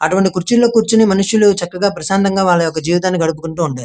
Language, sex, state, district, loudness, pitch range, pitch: Telugu, male, Andhra Pradesh, Krishna, -14 LUFS, 165-200 Hz, 185 Hz